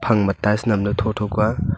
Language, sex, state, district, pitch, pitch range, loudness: Wancho, male, Arunachal Pradesh, Longding, 105 Hz, 105-110 Hz, -20 LUFS